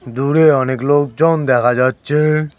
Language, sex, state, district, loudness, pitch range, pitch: Bengali, male, West Bengal, Cooch Behar, -14 LUFS, 130-155 Hz, 145 Hz